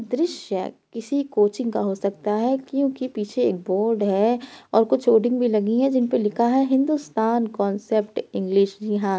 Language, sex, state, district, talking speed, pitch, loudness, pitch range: Hindi, female, Uttar Pradesh, Etah, 175 wpm, 225 Hz, -22 LUFS, 205-255 Hz